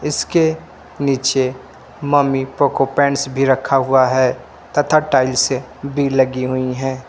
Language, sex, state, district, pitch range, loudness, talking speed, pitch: Hindi, male, Uttar Pradesh, Lucknow, 130-140 Hz, -17 LUFS, 125 wpm, 135 Hz